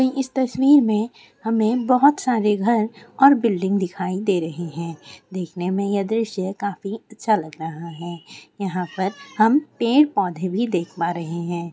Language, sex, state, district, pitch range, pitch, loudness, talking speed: Hindi, female, Bihar, Bhagalpur, 175-230 Hz, 200 Hz, -21 LUFS, 175 wpm